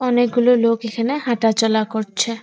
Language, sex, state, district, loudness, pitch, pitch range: Bengali, female, West Bengal, Purulia, -18 LUFS, 230 Hz, 225-245 Hz